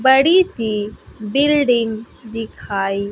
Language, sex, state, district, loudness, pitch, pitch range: Hindi, female, Bihar, West Champaran, -18 LUFS, 225 Hz, 210-265 Hz